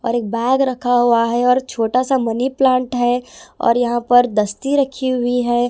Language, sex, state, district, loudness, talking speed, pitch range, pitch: Hindi, female, Punjab, Kapurthala, -17 LUFS, 200 wpm, 235-255 Hz, 245 Hz